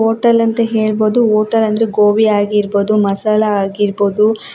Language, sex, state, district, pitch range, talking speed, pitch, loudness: Kannada, female, Karnataka, Dakshina Kannada, 205-225 Hz, 120 wpm, 215 Hz, -13 LUFS